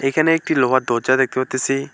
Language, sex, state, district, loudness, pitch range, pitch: Bengali, male, West Bengal, Alipurduar, -18 LUFS, 130-135 Hz, 130 Hz